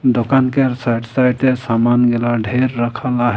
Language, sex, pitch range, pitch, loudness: Sadri, male, 120-130 Hz, 125 Hz, -16 LUFS